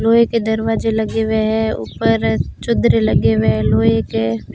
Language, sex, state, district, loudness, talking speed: Hindi, female, Rajasthan, Bikaner, -16 LUFS, 160 wpm